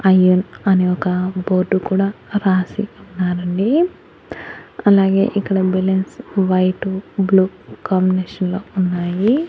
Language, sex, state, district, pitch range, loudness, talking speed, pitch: Telugu, female, Andhra Pradesh, Annamaya, 185-195 Hz, -17 LUFS, 100 wpm, 190 Hz